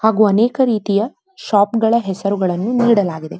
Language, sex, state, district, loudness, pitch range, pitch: Kannada, female, Karnataka, Dharwad, -16 LUFS, 200-235 Hz, 215 Hz